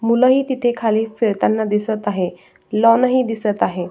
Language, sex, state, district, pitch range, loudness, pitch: Marathi, male, Maharashtra, Solapur, 210-240 Hz, -18 LUFS, 220 Hz